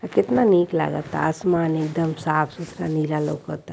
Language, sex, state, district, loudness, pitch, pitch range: Hindi, male, Uttar Pradesh, Varanasi, -22 LUFS, 160 Hz, 155-170 Hz